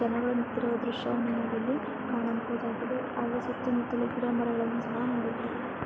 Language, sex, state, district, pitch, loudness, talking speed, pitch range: Kannada, female, Karnataka, Bijapur, 240 Hz, -31 LUFS, 100 wpm, 235-245 Hz